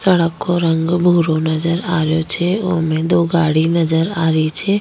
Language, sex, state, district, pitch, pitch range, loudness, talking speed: Rajasthani, female, Rajasthan, Nagaur, 170 Hz, 160-175 Hz, -16 LUFS, 200 wpm